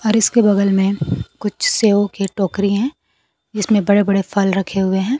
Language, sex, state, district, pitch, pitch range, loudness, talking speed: Hindi, female, Bihar, Kaimur, 200 Hz, 195-215 Hz, -17 LUFS, 185 wpm